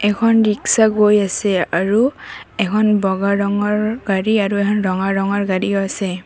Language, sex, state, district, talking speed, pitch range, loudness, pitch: Assamese, female, Assam, Kamrup Metropolitan, 135 wpm, 195-210 Hz, -16 LUFS, 205 Hz